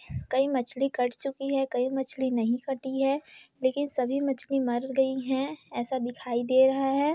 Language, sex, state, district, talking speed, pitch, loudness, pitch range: Hindi, female, Bihar, Kishanganj, 175 wpm, 265 Hz, -28 LUFS, 255-275 Hz